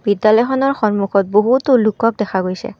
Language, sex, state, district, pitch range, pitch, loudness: Assamese, female, Assam, Kamrup Metropolitan, 205-245 Hz, 215 Hz, -15 LUFS